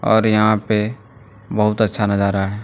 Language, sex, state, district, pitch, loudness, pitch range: Hindi, male, Jharkhand, Deoghar, 105 Hz, -18 LUFS, 100-110 Hz